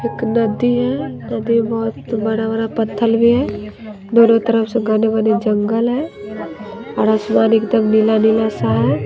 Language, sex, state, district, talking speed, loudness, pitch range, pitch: Hindi, female, Bihar, West Champaran, 150 wpm, -16 LUFS, 215-230 Hz, 225 Hz